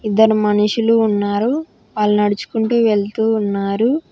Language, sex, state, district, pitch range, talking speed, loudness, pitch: Telugu, female, Telangana, Hyderabad, 205-225 Hz, 100 wpm, -16 LUFS, 215 Hz